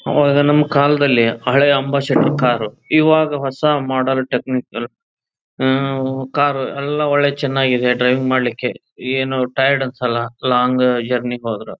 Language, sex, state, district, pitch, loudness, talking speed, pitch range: Kannada, male, Karnataka, Chamarajanagar, 130 Hz, -16 LUFS, 110 wpm, 125-140 Hz